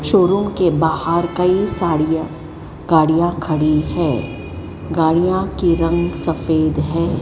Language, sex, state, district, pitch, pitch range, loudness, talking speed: Hindi, female, Maharashtra, Mumbai Suburban, 165 Hz, 160-175 Hz, -17 LUFS, 110 wpm